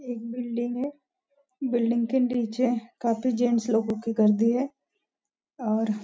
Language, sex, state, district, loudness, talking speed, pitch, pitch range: Hindi, female, Maharashtra, Nagpur, -26 LUFS, 140 wpm, 240 Hz, 230-255 Hz